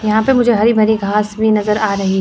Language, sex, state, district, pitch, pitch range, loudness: Hindi, female, Chandigarh, Chandigarh, 215 Hz, 210-220 Hz, -14 LUFS